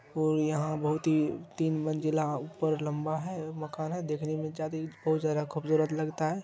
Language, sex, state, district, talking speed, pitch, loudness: Hindi, male, Bihar, Araria, 185 wpm, 155 Hz, -31 LUFS